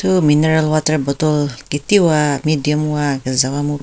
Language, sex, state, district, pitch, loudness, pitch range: Rengma, female, Nagaland, Kohima, 150 Hz, -16 LUFS, 145-155 Hz